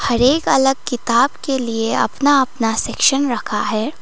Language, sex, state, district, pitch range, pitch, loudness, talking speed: Hindi, female, Sikkim, Gangtok, 235-275 Hz, 255 Hz, -17 LUFS, 165 wpm